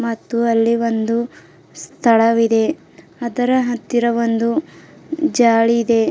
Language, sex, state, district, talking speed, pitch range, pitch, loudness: Kannada, female, Karnataka, Bidar, 90 wpm, 230-245 Hz, 235 Hz, -17 LUFS